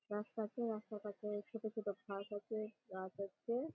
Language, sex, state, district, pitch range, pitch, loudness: Bengali, female, West Bengal, Malda, 205-225 Hz, 210 Hz, -45 LUFS